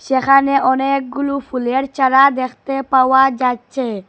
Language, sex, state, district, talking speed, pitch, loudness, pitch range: Bengali, female, Assam, Hailakandi, 115 wpm, 265 Hz, -15 LUFS, 255-275 Hz